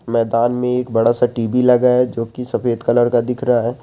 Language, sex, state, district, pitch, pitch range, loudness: Hindi, male, Rajasthan, Nagaur, 120 Hz, 115-125 Hz, -17 LUFS